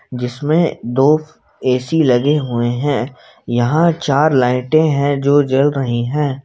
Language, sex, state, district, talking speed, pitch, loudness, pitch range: Hindi, male, Jharkhand, Ranchi, 130 wpm, 140 Hz, -15 LUFS, 125-150 Hz